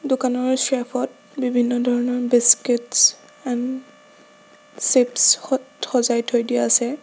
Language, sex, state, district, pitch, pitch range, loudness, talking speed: Assamese, female, Assam, Sonitpur, 245 Hz, 240-255 Hz, -19 LUFS, 120 wpm